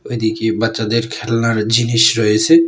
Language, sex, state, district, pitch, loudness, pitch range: Bengali, male, West Bengal, Alipurduar, 115 Hz, -15 LUFS, 110-115 Hz